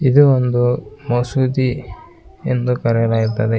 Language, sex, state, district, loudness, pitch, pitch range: Kannada, male, Karnataka, Koppal, -17 LUFS, 125 Hz, 115-130 Hz